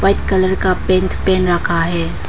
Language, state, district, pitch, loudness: Hindi, Arunachal Pradesh, Papum Pare, 185 Hz, -15 LUFS